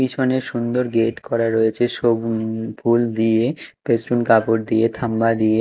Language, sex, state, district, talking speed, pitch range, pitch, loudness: Bengali, male, Odisha, Khordha, 140 wpm, 110-120 Hz, 115 Hz, -19 LUFS